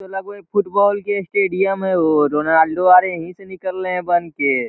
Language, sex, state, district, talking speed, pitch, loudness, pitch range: Magahi, male, Bihar, Lakhisarai, 190 wpm, 185 Hz, -17 LUFS, 165-195 Hz